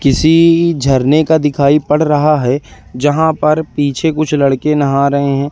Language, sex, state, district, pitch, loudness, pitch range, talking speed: Hindi, male, Madhya Pradesh, Katni, 150 Hz, -12 LUFS, 140-155 Hz, 165 wpm